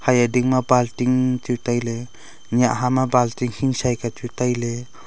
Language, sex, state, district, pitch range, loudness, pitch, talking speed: Wancho, male, Arunachal Pradesh, Longding, 120-125 Hz, -21 LUFS, 125 Hz, 165 wpm